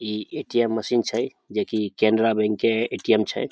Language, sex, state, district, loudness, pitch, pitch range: Maithili, male, Bihar, Samastipur, -23 LUFS, 110 Hz, 105-115 Hz